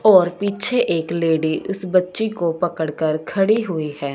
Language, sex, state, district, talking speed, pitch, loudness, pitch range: Hindi, female, Punjab, Fazilka, 175 wpm, 175 Hz, -20 LUFS, 160-195 Hz